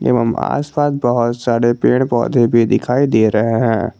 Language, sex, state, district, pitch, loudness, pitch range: Hindi, male, Jharkhand, Garhwa, 120 Hz, -15 LUFS, 115-125 Hz